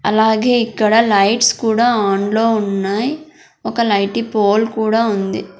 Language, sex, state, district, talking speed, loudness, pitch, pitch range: Telugu, female, Andhra Pradesh, Sri Satya Sai, 130 wpm, -15 LUFS, 220 Hz, 205-230 Hz